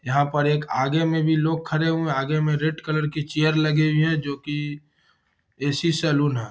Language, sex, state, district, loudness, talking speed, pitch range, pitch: Hindi, male, Bihar, Gaya, -22 LUFS, 220 wpm, 145-160 Hz, 150 Hz